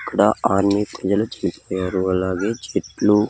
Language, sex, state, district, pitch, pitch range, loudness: Telugu, male, Andhra Pradesh, Sri Satya Sai, 100 Hz, 95-105 Hz, -21 LUFS